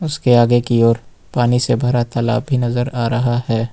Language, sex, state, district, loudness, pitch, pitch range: Hindi, male, Jharkhand, Ranchi, -16 LUFS, 120 Hz, 120-125 Hz